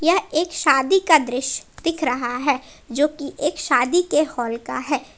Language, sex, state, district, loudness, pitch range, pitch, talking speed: Hindi, female, Jharkhand, Palamu, -20 LUFS, 255-330 Hz, 295 Hz, 175 wpm